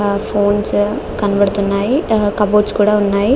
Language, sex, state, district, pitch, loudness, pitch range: Telugu, female, Andhra Pradesh, Guntur, 205 Hz, -15 LUFS, 200-210 Hz